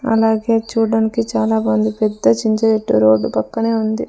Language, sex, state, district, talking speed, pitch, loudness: Telugu, female, Andhra Pradesh, Sri Satya Sai, 145 wpm, 215 Hz, -16 LUFS